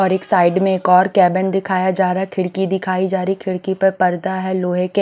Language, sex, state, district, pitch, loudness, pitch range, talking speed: Hindi, female, Maharashtra, Washim, 185 Hz, -17 LUFS, 185-190 Hz, 275 wpm